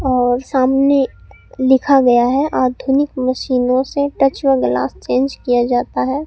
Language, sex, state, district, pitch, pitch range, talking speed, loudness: Hindi, female, Rajasthan, Bikaner, 260 Hz, 250-275 Hz, 145 wpm, -15 LUFS